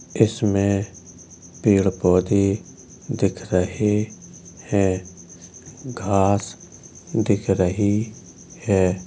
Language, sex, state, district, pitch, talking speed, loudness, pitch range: Hindi, male, Uttar Pradesh, Jalaun, 100 Hz, 65 wpm, -21 LUFS, 90-105 Hz